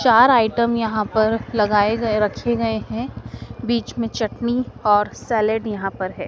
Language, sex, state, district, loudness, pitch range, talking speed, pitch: Hindi, female, Madhya Pradesh, Dhar, -20 LUFS, 210-235 Hz, 160 wpm, 220 Hz